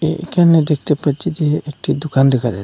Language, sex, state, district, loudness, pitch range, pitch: Bengali, male, Assam, Hailakandi, -16 LUFS, 140-160 Hz, 150 Hz